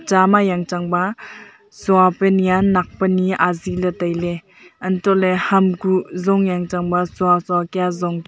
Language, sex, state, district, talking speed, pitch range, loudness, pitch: Wancho, female, Arunachal Pradesh, Longding, 180 wpm, 180-190 Hz, -18 LUFS, 185 Hz